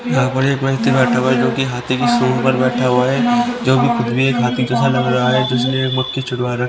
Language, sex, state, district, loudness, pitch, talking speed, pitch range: Hindi, male, Haryana, Rohtak, -16 LUFS, 125 Hz, 190 wpm, 125-130 Hz